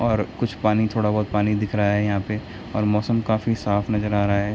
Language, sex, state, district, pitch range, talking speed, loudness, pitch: Hindi, male, Bihar, Begusarai, 105-110 Hz, 250 wpm, -22 LUFS, 105 Hz